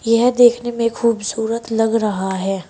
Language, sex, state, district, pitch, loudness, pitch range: Hindi, female, Uttar Pradesh, Saharanpur, 225 Hz, -17 LUFS, 210-235 Hz